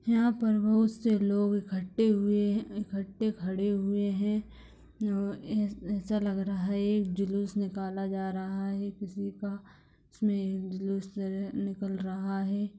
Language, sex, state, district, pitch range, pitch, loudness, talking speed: Hindi, female, Bihar, Gopalganj, 195-210 Hz, 200 Hz, -31 LUFS, 130 wpm